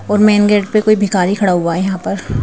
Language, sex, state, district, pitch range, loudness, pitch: Hindi, female, Madhya Pradesh, Bhopal, 180-210 Hz, -13 LUFS, 200 Hz